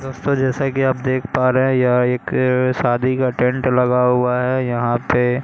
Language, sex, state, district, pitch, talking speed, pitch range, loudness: Hindi, male, Bihar, Katihar, 125 Hz, 200 wpm, 125-130 Hz, -17 LUFS